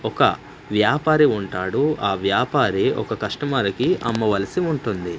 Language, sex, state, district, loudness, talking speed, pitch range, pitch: Telugu, male, Andhra Pradesh, Manyam, -21 LUFS, 105 wpm, 100-145 Hz, 110 Hz